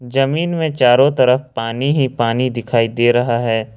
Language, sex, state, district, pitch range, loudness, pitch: Hindi, male, Jharkhand, Ranchi, 115-135 Hz, -16 LUFS, 125 Hz